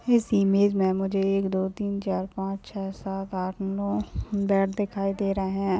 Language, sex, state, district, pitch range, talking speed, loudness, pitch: Hindi, female, Bihar, Lakhisarai, 190-200 Hz, 185 wpm, -26 LUFS, 195 Hz